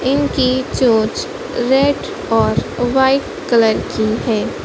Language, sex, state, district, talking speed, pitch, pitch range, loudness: Hindi, female, Madhya Pradesh, Dhar, 105 wpm, 260 Hz, 235-275 Hz, -16 LUFS